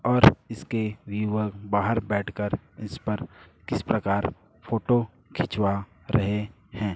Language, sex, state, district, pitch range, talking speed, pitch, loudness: Hindi, male, Chhattisgarh, Raipur, 100-115 Hz, 110 wpm, 105 Hz, -27 LUFS